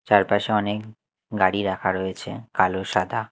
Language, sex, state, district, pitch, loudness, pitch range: Bengali, male, Chhattisgarh, Raipur, 100 Hz, -23 LUFS, 95-105 Hz